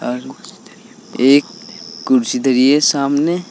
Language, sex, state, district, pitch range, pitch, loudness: Hindi, male, Uttar Pradesh, Saharanpur, 135-225 Hz, 150 Hz, -14 LUFS